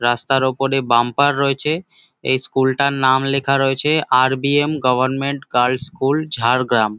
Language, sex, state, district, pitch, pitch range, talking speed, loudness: Bengali, male, West Bengal, Jhargram, 135 Hz, 130-140 Hz, 135 wpm, -17 LUFS